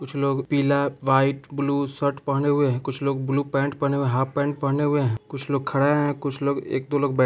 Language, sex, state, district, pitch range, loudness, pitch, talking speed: Bhojpuri, male, Bihar, Saran, 135-145 Hz, -23 LUFS, 140 Hz, 265 wpm